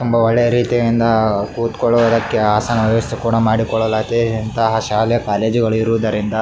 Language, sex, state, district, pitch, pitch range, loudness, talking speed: Kannada, male, Karnataka, Raichur, 115 Hz, 110-115 Hz, -16 LUFS, 130 wpm